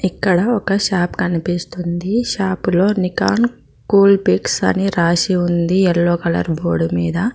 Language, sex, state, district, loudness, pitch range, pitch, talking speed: Telugu, female, Telangana, Mahabubabad, -16 LUFS, 175-195 Hz, 180 Hz, 115 wpm